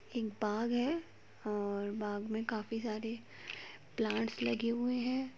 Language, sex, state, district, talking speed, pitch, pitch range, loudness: Hindi, female, Uttarakhand, Tehri Garhwal, 135 wpm, 225 Hz, 210-240 Hz, -37 LUFS